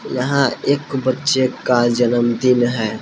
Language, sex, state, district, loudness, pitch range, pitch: Hindi, male, Jharkhand, Palamu, -17 LUFS, 120-135 Hz, 125 Hz